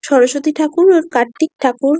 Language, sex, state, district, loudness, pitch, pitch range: Bengali, female, West Bengal, Kolkata, -14 LUFS, 290 Hz, 260-315 Hz